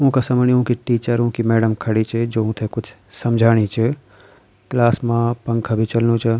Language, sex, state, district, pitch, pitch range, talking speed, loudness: Garhwali, male, Uttarakhand, Tehri Garhwal, 115 Hz, 110-120 Hz, 180 wpm, -18 LUFS